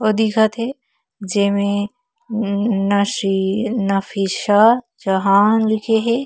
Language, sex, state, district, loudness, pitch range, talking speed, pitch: Chhattisgarhi, female, Chhattisgarh, Korba, -17 LUFS, 200-225 Hz, 95 wpm, 215 Hz